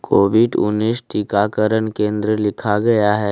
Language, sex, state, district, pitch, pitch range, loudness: Hindi, male, Jharkhand, Deoghar, 105 Hz, 105-110 Hz, -17 LUFS